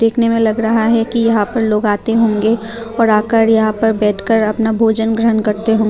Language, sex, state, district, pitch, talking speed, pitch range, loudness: Hindi, female, Tripura, Unakoti, 225 Hz, 215 wpm, 215-230 Hz, -14 LUFS